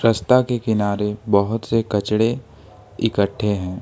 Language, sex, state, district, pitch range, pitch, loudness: Hindi, male, Jharkhand, Ranchi, 100-115 Hz, 105 Hz, -20 LUFS